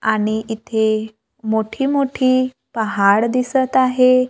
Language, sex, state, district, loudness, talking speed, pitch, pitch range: Marathi, female, Maharashtra, Gondia, -18 LUFS, 85 wpm, 230 Hz, 220-255 Hz